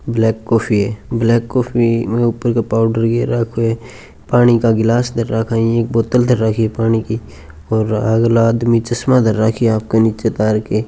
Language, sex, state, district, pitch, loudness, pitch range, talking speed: Marwari, male, Rajasthan, Churu, 115 Hz, -15 LUFS, 110-115 Hz, 205 wpm